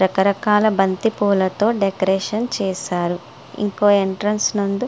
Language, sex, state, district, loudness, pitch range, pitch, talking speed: Telugu, female, Andhra Pradesh, Srikakulam, -19 LUFS, 190-210 Hz, 200 Hz, 100 wpm